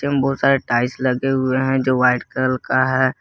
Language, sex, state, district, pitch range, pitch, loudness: Hindi, male, Jharkhand, Garhwa, 130-135 Hz, 130 Hz, -18 LUFS